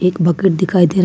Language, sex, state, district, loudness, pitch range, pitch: Hindi, female, Jharkhand, Ranchi, -14 LUFS, 175-185 Hz, 180 Hz